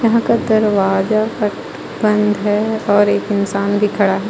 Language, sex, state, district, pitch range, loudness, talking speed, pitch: Hindi, female, Jharkhand, Ranchi, 200-215 Hz, -16 LUFS, 165 wpm, 210 Hz